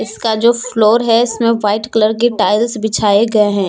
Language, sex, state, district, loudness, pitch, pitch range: Hindi, female, Jharkhand, Deoghar, -13 LUFS, 225 Hz, 215-230 Hz